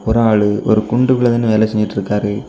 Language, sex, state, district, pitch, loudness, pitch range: Tamil, male, Tamil Nadu, Kanyakumari, 110 Hz, -15 LUFS, 105-115 Hz